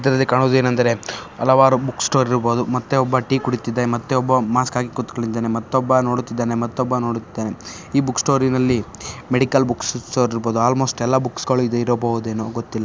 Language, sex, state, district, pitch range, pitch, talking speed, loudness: Kannada, male, Karnataka, Shimoga, 115-130 Hz, 125 Hz, 150 wpm, -19 LUFS